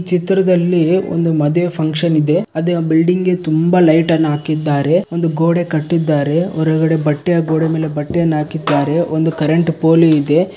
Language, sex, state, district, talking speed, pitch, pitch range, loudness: Kannada, male, Karnataka, Bellary, 155 wpm, 160 Hz, 155-175 Hz, -14 LUFS